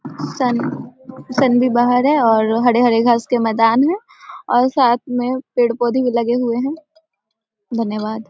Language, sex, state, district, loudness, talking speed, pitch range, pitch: Hindi, female, Bihar, Samastipur, -16 LUFS, 150 wpm, 230-255 Hz, 245 Hz